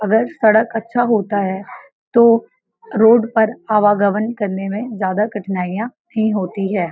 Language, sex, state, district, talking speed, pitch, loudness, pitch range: Hindi, female, Uttar Pradesh, Varanasi, 150 wpm, 215 Hz, -17 LUFS, 200-225 Hz